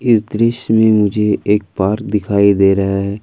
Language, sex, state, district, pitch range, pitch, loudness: Hindi, male, Jharkhand, Ranchi, 100-110 Hz, 105 Hz, -14 LUFS